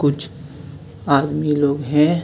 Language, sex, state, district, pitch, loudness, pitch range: Hindi, male, Jharkhand, Ranchi, 145 Hz, -18 LUFS, 145-150 Hz